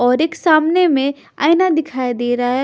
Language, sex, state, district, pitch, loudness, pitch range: Hindi, female, Punjab, Pathankot, 285 Hz, -16 LUFS, 250-320 Hz